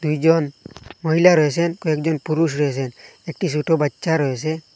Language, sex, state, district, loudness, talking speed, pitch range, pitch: Bengali, male, Assam, Hailakandi, -19 LUFS, 125 wpm, 150-165 Hz, 160 Hz